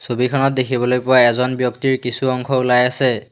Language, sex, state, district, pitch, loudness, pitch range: Assamese, male, Assam, Hailakandi, 125 Hz, -16 LUFS, 125-130 Hz